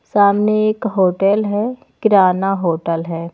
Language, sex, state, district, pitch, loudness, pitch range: Hindi, female, Haryana, Jhajjar, 200 Hz, -16 LUFS, 180-215 Hz